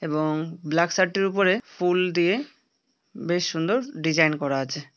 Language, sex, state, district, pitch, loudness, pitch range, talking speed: Bengali, male, West Bengal, Dakshin Dinajpur, 170 Hz, -24 LUFS, 155-185 Hz, 145 wpm